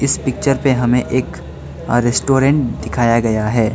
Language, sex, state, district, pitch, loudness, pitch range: Hindi, male, Arunachal Pradesh, Lower Dibang Valley, 120 Hz, -16 LUFS, 110-135 Hz